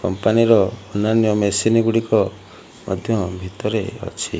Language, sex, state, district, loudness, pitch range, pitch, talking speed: Odia, male, Odisha, Malkangiri, -19 LUFS, 95-115 Hz, 110 Hz, 110 wpm